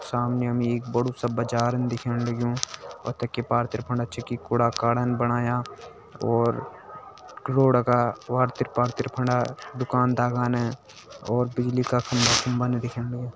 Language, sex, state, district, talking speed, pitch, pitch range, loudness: Hindi, male, Uttarakhand, Tehri Garhwal, 135 wpm, 120 Hz, 120-125 Hz, -25 LUFS